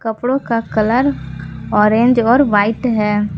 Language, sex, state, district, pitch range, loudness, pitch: Hindi, female, Jharkhand, Palamu, 210-245 Hz, -15 LUFS, 230 Hz